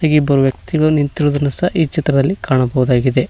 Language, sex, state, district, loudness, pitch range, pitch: Kannada, male, Karnataka, Koppal, -15 LUFS, 135-155 Hz, 145 Hz